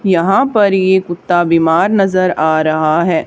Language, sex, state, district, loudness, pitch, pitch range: Hindi, female, Haryana, Charkhi Dadri, -12 LUFS, 175 Hz, 165-195 Hz